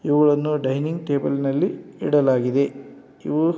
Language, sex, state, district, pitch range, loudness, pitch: Kannada, male, Karnataka, Dharwad, 140-150 Hz, -21 LUFS, 145 Hz